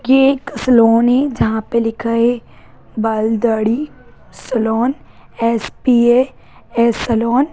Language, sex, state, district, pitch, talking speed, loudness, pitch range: Hindi, male, Bihar, Lakhisarai, 235 Hz, 110 wpm, -15 LUFS, 225-255 Hz